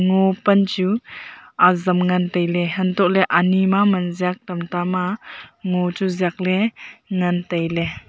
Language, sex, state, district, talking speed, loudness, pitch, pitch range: Wancho, female, Arunachal Pradesh, Longding, 125 wpm, -19 LUFS, 180 Hz, 175-190 Hz